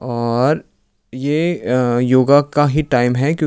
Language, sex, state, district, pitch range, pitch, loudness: Hindi, male, Uttar Pradesh, Lucknow, 120-145 Hz, 130 Hz, -16 LUFS